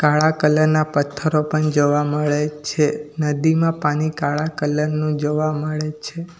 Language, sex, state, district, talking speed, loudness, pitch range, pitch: Gujarati, male, Gujarat, Valsad, 150 wpm, -19 LUFS, 150-155 Hz, 150 Hz